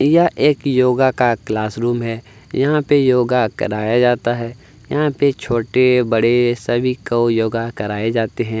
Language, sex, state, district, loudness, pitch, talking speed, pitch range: Hindi, male, Chhattisgarh, Kabirdham, -17 LUFS, 120 Hz, 155 wpm, 115-130 Hz